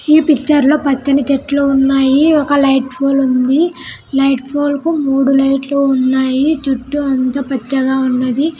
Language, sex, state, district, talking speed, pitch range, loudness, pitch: Telugu, female, Andhra Pradesh, Anantapur, 145 wpm, 265-290 Hz, -13 LUFS, 275 Hz